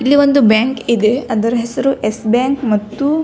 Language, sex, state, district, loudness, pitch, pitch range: Kannada, female, Karnataka, Belgaum, -14 LUFS, 240 Hz, 220-275 Hz